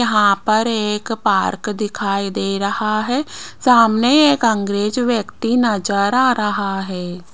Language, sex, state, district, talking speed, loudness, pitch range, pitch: Hindi, female, Rajasthan, Jaipur, 130 wpm, -17 LUFS, 200-235 Hz, 215 Hz